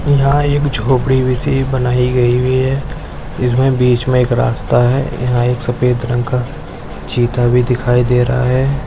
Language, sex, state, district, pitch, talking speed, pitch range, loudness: Hindi, male, Maharashtra, Dhule, 125 Hz, 170 wpm, 125-130 Hz, -14 LUFS